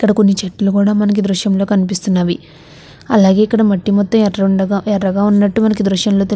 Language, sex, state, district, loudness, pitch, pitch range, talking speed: Telugu, female, Andhra Pradesh, Chittoor, -14 LUFS, 200 Hz, 190-210 Hz, 180 wpm